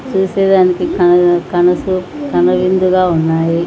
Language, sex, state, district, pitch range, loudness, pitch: Telugu, female, Andhra Pradesh, Anantapur, 170-185 Hz, -12 LUFS, 180 Hz